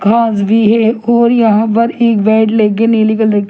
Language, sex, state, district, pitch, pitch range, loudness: Hindi, female, Delhi, New Delhi, 220 Hz, 215-230 Hz, -10 LUFS